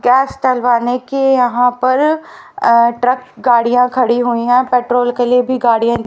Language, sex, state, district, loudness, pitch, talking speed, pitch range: Hindi, female, Haryana, Rohtak, -13 LUFS, 245 Hz, 160 wpm, 240-255 Hz